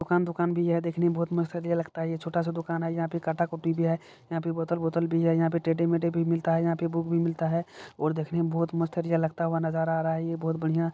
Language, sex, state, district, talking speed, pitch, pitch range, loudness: Maithili, male, Bihar, Supaul, 295 wpm, 165 Hz, 165-170 Hz, -28 LUFS